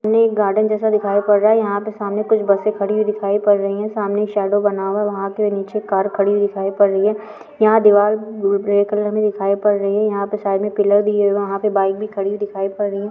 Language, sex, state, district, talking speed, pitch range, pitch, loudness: Hindi, female, Bihar, Araria, 275 wpm, 200-210 Hz, 205 Hz, -17 LUFS